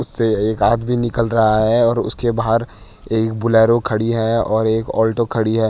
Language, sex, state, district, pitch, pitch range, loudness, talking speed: Hindi, male, Uttarakhand, Tehri Garhwal, 115 Hz, 110-115 Hz, -17 LUFS, 190 wpm